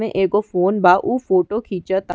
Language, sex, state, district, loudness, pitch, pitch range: Bhojpuri, female, Uttar Pradesh, Ghazipur, -18 LUFS, 190 Hz, 185-215 Hz